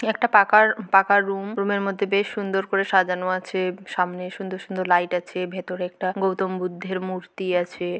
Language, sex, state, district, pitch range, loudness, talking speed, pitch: Bengali, female, West Bengal, Jhargram, 180-200 Hz, -23 LUFS, 180 wpm, 190 Hz